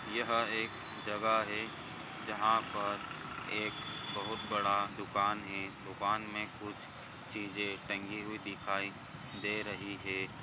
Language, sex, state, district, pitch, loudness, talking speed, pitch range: Hindi, male, Maharashtra, Pune, 105 Hz, -36 LUFS, 120 wpm, 100-110 Hz